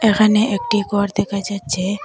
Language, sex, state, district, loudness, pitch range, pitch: Bengali, female, Assam, Hailakandi, -18 LUFS, 200-215 Hz, 200 Hz